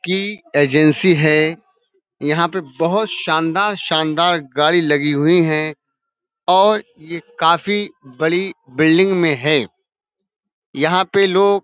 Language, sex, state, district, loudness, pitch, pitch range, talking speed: Hindi, male, Uttar Pradesh, Budaun, -16 LUFS, 170 Hz, 155-200 Hz, 120 wpm